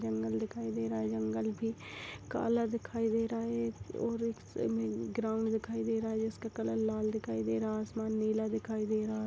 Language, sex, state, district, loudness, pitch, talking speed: Hindi, female, Chhattisgarh, Balrampur, -35 LUFS, 220 Hz, 215 wpm